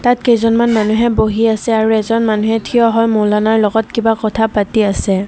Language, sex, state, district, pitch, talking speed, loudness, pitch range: Assamese, female, Assam, Kamrup Metropolitan, 220 Hz, 180 wpm, -13 LUFS, 215-230 Hz